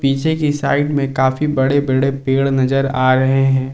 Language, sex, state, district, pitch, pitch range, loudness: Hindi, male, Jharkhand, Palamu, 135 Hz, 130-140 Hz, -16 LUFS